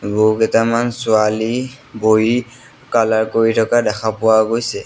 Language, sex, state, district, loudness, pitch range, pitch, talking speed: Assamese, male, Assam, Sonitpur, -16 LUFS, 110-115 Hz, 115 Hz, 110 wpm